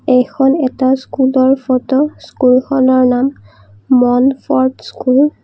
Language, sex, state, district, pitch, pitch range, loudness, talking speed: Assamese, female, Assam, Kamrup Metropolitan, 260 Hz, 255-270 Hz, -13 LUFS, 100 wpm